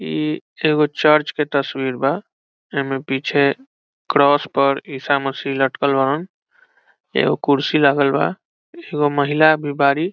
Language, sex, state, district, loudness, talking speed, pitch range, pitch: Bhojpuri, male, Bihar, Saran, -18 LUFS, 135 wpm, 135-150 Hz, 140 Hz